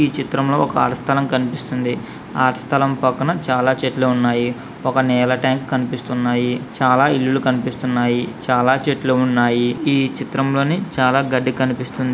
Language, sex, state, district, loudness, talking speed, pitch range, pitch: Telugu, male, Andhra Pradesh, Srikakulam, -18 LUFS, 130 wpm, 125-135 Hz, 130 Hz